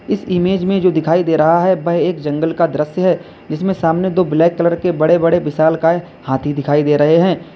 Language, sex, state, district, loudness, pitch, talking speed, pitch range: Hindi, male, Uttar Pradesh, Lalitpur, -15 LUFS, 170 Hz, 230 wpm, 155-180 Hz